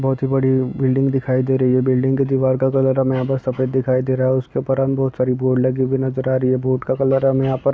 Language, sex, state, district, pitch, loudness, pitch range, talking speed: Hindi, male, Andhra Pradesh, Chittoor, 130 Hz, -18 LUFS, 130-135 Hz, 295 wpm